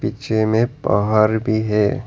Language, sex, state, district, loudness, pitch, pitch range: Hindi, male, Arunachal Pradesh, Lower Dibang Valley, -18 LUFS, 110 Hz, 105-115 Hz